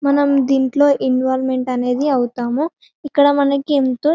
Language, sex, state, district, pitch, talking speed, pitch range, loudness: Telugu, female, Telangana, Karimnagar, 275 Hz, 130 wpm, 260-285 Hz, -17 LUFS